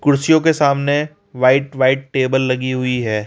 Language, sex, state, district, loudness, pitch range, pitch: Hindi, male, Rajasthan, Jaipur, -16 LUFS, 130-145 Hz, 135 Hz